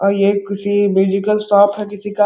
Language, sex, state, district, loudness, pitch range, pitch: Hindi, male, Bihar, Muzaffarpur, -15 LUFS, 200-205 Hz, 205 Hz